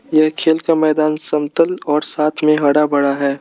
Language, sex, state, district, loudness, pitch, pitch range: Hindi, male, Arunachal Pradesh, Lower Dibang Valley, -16 LUFS, 155 Hz, 145-155 Hz